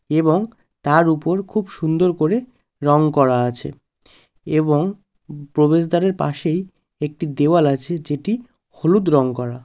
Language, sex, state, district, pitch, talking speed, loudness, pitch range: Bengali, male, West Bengal, Jalpaiguri, 160 Hz, 120 wpm, -19 LUFS, 145-185 Hz